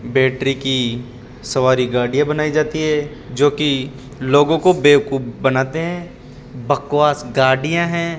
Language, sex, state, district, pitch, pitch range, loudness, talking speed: Hindi, male, Rajasthan, Jaipur, 135 Hz, 130-150 Hz, -17 LUFS, 125 wpm